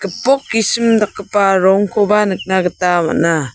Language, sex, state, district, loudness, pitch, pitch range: Garo, female, Meghalaya, South Garo Hills, -14 LUFS, 195 Hz, 180-210 Hz